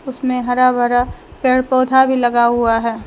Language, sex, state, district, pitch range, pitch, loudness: Hindi, female, Jharkhand, Deoghar, 240-255 Hz, 250 Hz, -15 LUFS